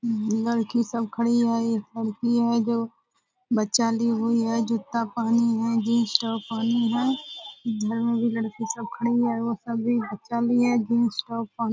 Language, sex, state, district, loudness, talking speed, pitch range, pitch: Hindi, female, Bihar, Purnia, -25 LUFS, 185 wpm, 225-235 Hz, 230 Hz